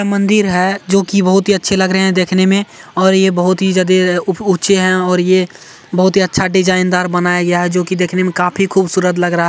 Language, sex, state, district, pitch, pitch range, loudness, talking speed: Hindi, male, Bihar, Saharsa, 185 Hz, 180-190 Hz, -13 LUFS, 235 wpm